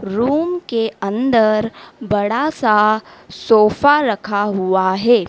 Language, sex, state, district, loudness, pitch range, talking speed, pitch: Hindi, female, Madhya Pradesh, Dhar, -16 LUFS, 205-240 Hz, 100 wpm, 220 Hz